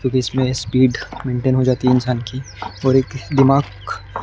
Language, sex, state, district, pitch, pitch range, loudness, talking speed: Hindi, male, Maharashtra, Gondia, 130 Hz, 125-130 Hz, -18 LUFS, 185 wpm